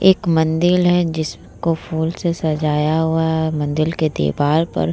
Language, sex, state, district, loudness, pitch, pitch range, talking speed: Hindi, female, Bihar, Vaishali, -18 LUFS, 160 Hz, 155-165 Hz, 170 wpm